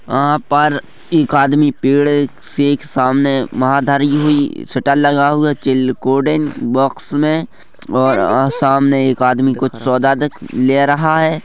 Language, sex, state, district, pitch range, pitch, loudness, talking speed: Hindi, male, Chhattisgarh, Rajnandgaon, 130-145 Hz, 140 Hz, -14 LUFS, 150 wpm